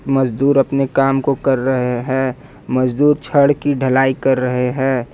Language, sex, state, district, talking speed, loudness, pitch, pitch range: Hindi, male, Jharkhand, Ranchi, 165 wpm, -16 LUFS, 135 Hz, 130-140 Hz